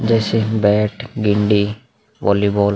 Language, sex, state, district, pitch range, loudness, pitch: Hindi, male, Bihar, Vaishali, 100-110 Hz, -17 LUFS, 105 Hz